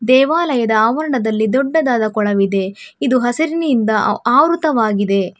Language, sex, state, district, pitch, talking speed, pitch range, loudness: Kannada, female, Karnataka, Bangalore, 235 Hz, 80 wpm, 215-285 Hz, -15 LUFS